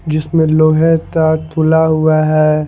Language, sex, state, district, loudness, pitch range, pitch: Hindi, male, Punjab, Fazilka, -12 LUFS, 155-160 Hz, 155 Hz